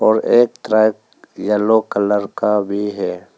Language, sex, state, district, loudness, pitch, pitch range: Hindi, male, Arunachal Pradesh, Papum Pare, -17 LUFS, 105 Hz, 100-110 Hz